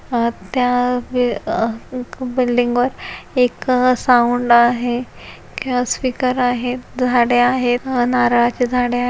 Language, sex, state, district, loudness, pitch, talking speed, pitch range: Marathi, female, Maharashtra, Pune, -17 LUFS, 245 Hz, 110 wpm, 245-250 Hz